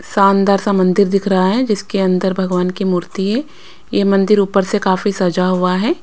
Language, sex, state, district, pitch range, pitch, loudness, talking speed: Hindi, female, Punjab, Kapurthala, 185-205 Hz, 195 Hz, -15 LUFS, 200 wpm